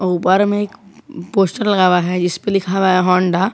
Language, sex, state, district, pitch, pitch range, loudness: Hindi, male, Jharkhand, Garhwa, 185 Hz, 180-195 Hz, -16 LUFS